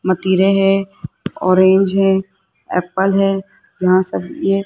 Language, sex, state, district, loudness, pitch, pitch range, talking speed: Hindi, male, Rajasthan, Jaipur, -15 LUFS, 190 Hz, 185-195 Hz, 130 wpm